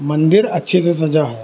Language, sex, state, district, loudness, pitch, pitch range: Hindi, male, Karnataka, Bangalore, -15 LUFS, 160 Hz, 150-180 Hz